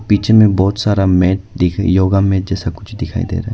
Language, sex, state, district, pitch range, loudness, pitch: Hindi, male, Arunachal Pradesh, Lower Dibang Valley, 95-105 Hz, -14 LUFS, 100 Hz